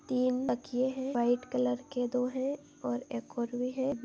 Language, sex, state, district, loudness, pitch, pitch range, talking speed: Hindi, female, Chhattisgarh, Balrampur, -33 LUFS, 250 Hz, 245-260 Hz, 190 wpm